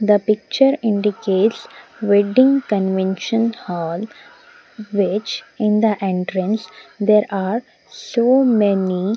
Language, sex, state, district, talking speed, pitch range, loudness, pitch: English, female, Punjab, Pathankot, 90 wpm, 195-230 Hz, -18 LUFS, 210 Hz